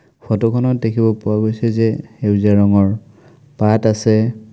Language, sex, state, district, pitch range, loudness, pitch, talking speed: Assamese, male, Assam, Kamrup Metropolitan, 105-115 Hz, -16 LUFS, 110 Hz, 130 wpm